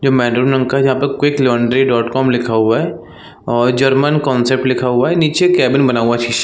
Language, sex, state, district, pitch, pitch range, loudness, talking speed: Hindi, male, Chhattisgarh, Raigarh, 130 Hz, 120-140 Hz, -14 LUFS, 235 wpm